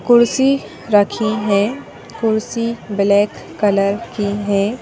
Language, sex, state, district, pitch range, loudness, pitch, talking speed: Hindi, female, Madhya Pradesh, Bhopal, 200-230 Hz, -17 LUFS, 210 Hz, 100 wpm